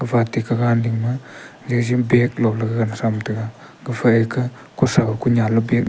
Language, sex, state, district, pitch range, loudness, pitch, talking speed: Wancho, male, Arunachal Pradesh, Longding, 115-125 Hz, -19 LUFS, 120 Hz, 155 wpm